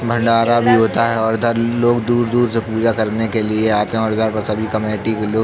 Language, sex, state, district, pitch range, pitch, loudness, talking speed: Hindi, male, Uttar Pradesh, Jalaun, 110-115 Hz, 110 Hz, -16 LUFS, 255 wpm